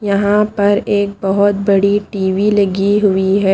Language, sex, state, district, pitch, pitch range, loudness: Hindi, female, Haryana, Rohtak, 200 Hz, 195-205 Hz, -14 LUFS